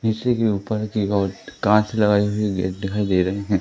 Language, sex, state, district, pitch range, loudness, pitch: Hindi, male, Madhya Pradesh, Katni, 100-110 Hz, -21 LUFS, 105 Hz